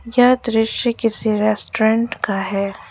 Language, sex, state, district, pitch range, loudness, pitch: Hindi, female, Jharkhand, Ranchi, 210-235 Hz, -18 LUFS, 225 Hz